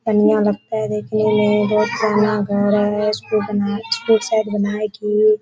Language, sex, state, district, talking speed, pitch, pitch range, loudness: Hindi, female, Bihar, Kishanganj, 110 wpm, 210 Hz, 210-215 Hz, -18 LUFS